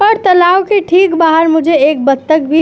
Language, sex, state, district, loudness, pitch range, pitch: Hindi, female, Uttar Pradesh, Etah, -10 LUFS, 315-370 Hz, 330 Hz